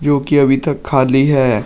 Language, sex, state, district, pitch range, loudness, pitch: Hindi, male, Uttar Pradesh, Shamli, 130-145 Hz, -13 LUFS, 135 Hz